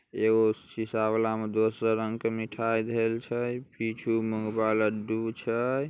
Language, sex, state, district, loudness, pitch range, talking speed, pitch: Magahi, male, Bihar, Samastipur, -29 LUFS, 110-115 Hz, 120 wpm, 110 Hz